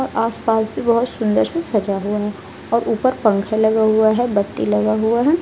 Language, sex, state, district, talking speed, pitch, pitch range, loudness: Hindi, female, Bihar, Kaimur, 210 wpm, 220 Hz, 210-235 Hz, -18 LUFS